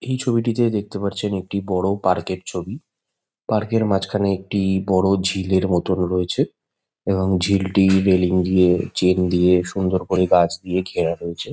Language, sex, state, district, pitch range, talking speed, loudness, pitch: Bengali, male, West Bengal, Kolkata, 90-100 Hz, 150 wpm, -20 LUFS, 95 Hz